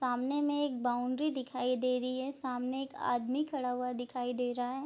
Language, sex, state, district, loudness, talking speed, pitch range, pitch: Hindi, female, Bihar, Bhagalpur, -34 LUFS, 210 wpm, 245-270 Hz, 255 Hz